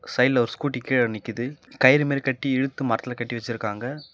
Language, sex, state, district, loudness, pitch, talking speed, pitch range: Tamil, male, Tamil Nadu, Namakkal, -24 LUFS, 130 Hz, 160 wpm, 120-135 Hz